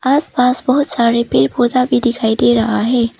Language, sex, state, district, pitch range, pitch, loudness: Hindi, female, Arunachal Pradesh, Papum Pare, 230-255 Hz, 240 Hz, -14 LUFS